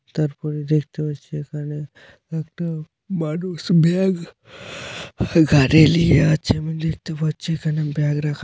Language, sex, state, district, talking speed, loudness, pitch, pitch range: Bengali, male, West Bengal, Malda, 100 wpm, -20 LUFS, 155 Hz, 150-165 Hz